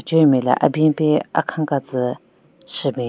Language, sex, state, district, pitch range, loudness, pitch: Rengma, female, Nagaland, Kohima, 125-155 Hz, -19 LUFS, 140 Hz